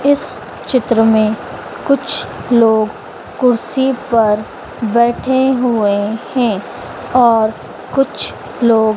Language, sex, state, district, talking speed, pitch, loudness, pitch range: Hindi, female, Madhya Pradesh, Dhar, 85 wpm, 235 Hz, -15 LUFS, 220-255 Hz